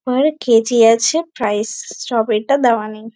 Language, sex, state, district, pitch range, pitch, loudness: Bengali, female, West Bengal, Jalpaiguri, 220-255 Hz, 230 Hz, -16 LUFS